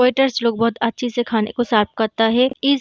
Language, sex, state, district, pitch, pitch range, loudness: Hindi, female, Bihar, Gaya, 235 Hz, 225-250 Hz, -18 LUFS